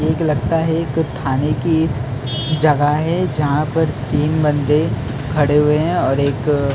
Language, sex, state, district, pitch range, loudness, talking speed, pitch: Hindi, male, Maharashtra, Mumbai Suburban, 140-155 Hz, -17 LUFS, 150 wpm, 150 Hz